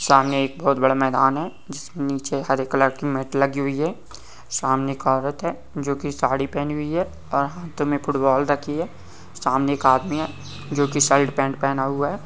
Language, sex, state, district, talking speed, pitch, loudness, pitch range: Hindi, male, West Bengal, Malda, 200 wpm, 140 Hz, -22 LUFS, 135-145 Hz